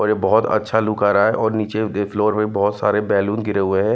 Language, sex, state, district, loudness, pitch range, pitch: Hindi, male, Himachal Pradesh, Shimla, -18 LUFS, 100-110 Hz, 105 Hz